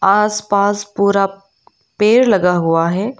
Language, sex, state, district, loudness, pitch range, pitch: Hindi, female, Arunachal Pradesh, Lower Dibang Valley, -15 LUFS, 195-210 Hz, 200 Hz